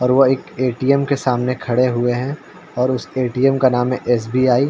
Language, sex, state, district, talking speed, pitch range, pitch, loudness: Hindi, male, Uttar Pradesh, Ghazipur, 215 wpm, 125-135 Hz, 130 Hz, -18 LUFS